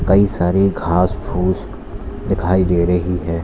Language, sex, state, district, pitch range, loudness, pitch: Hindi, male, Uttar Pradesh, Lalitpur, 85-95 Hz, -17 LUFS, 90 Hz